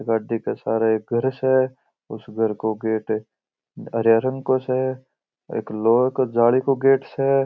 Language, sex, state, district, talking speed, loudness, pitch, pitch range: Marwari, male, Rajasthan, Churu, 170 wpm, -21 LUFS, 120 Hz, 110-130 Hz